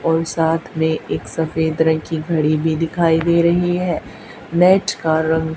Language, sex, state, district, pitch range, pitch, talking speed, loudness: Hindi, female, Haryana, Charkhi Dadri, 160-170 Hz, 160 Hz, 170 wpm, -18 LUFS